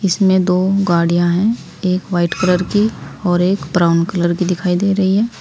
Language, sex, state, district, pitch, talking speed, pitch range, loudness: Hindi, female, Uttar Pradesh, Saharanpur, 180 Hz, 190 wpm, 175-195 Hz, -16 LUFS